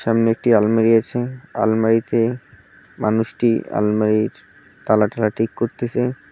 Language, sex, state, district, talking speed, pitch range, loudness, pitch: Bengali, male, West Bengal, Cooch Behar, 105 wpm, 110-120 Hz, -19 LUFS, 115 Hz